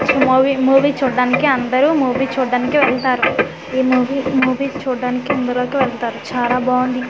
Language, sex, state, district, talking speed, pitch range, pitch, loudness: Telugu, female, Andhra Pradesh, Manyam, 135 wpm, 250-270 Hz, 260 Hz, -16 LUFS